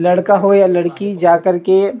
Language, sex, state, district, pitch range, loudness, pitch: Chhattisgarhi, male, Chhattisgarh, Rajnandgaon, 175-200 Hz, -13 LUFS, 190 Hz